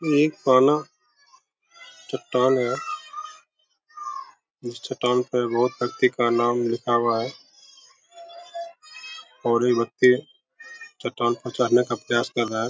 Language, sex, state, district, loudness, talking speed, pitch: Hindi, male, Bihar, Begusarai, -23 LUFS, 120 wpm, 130 Hz